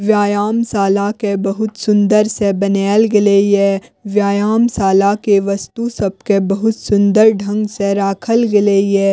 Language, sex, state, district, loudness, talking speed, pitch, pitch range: Maithili, female, Bihar, Madhepura, -14 LUFS, 145 wpm, 205 Hz, 200-215 Hz